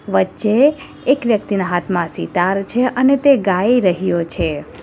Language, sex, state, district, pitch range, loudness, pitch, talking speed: Gujarati, female, Gujarat, Valsad, 175-250 Hz, -16 LUFS, 195 Hz, 135 wpm